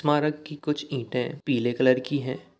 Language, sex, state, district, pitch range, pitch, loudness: Hindi, male, Chhattisgarh, Bilaspur, 130-150 Hz, 145 Hz, -26 LUFS